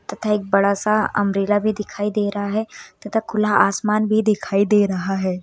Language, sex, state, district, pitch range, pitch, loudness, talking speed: Hindi, female, Bihar, Muzaffarpur, 200-215 Hz, 205 Hz, -19 LUFS, 200 wpm